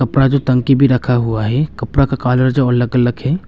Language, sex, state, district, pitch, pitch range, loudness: Hindi, male, Arunachal Pradesh, Longding, 130 Hz, 120-135 Hz, -14 LUFS